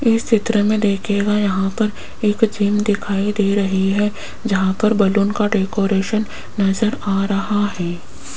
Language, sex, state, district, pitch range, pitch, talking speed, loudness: Hindi, female, Rajasthan, Jaipur, 195-215 Hz, 205 Hz, 150 wpm, -18 LUFS